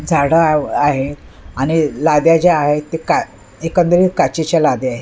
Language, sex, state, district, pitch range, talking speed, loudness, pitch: Marathi, female, Maharashtra, Mumbai Suburban, 145-165 Hz, 155 wpm, -15 LUFS, 155 Hz